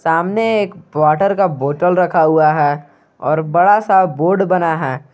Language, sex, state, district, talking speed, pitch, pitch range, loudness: Hindi, male, Jharkhand, Garhwa, 165 wpm, 165 Hz, 150-190 Hz, -14 LUFS